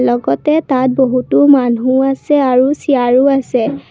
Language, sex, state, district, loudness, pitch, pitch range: Assamese, female, Assam, Kamrup Metropolitan, -12 LUFS, 260 Hz, 250-280 Hz